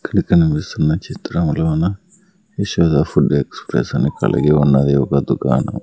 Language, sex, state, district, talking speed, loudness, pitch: Telugu, male, Andhra Pradesh, Sri Satya Sai, 115 wpm, -17 LUFS, 80 Hz